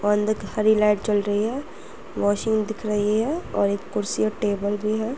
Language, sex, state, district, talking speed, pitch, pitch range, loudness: Hindi, female, Uttar Pradesh, Jyotiba Phule Nagar, 220 wpm, 210 Hz, 205-220 Hz, -23 LUFS